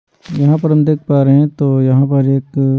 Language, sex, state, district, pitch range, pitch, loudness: Hindi, male, Bihar, Patna, 135-150 Hz, 140 Hz, -13 LUFS